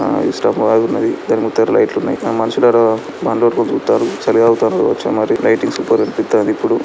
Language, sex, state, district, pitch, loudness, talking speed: Telugu, male, Andhra Pradesh, Srikakulam, 115 Hz, -14 LUFS, 165 wpm